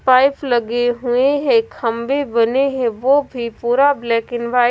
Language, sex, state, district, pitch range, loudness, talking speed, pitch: Hindi, female, Punjab, Kapurthala, 235-275 Hz, -17 LUFS, 180 wpm, 245 Hz